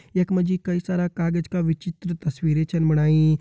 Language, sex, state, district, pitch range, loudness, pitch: Hindi, male, Uttarakhand, Tehri Garhwal, 155-180 Hz, -23 LUFS, 170 Hz